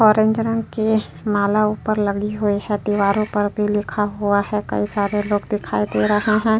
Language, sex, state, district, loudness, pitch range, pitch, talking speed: Hindi, female, Uttar Pradesh, Jyotiba Phule Nagar, -20 LUFS, 205-215 Hz, 210 Hz, 180 wpm